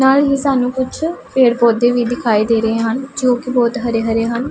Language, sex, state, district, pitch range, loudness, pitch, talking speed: Punjabi, female, Punjab, Pathankot, 230-260 Hz, -15 LUFS, 245 Hz, 225 wpm